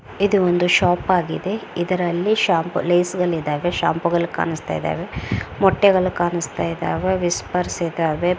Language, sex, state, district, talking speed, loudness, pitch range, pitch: Kannada, female, Karnataka, Mysore, 105 wpm, -20 LUFS, 170-185 Hz, 175 Hz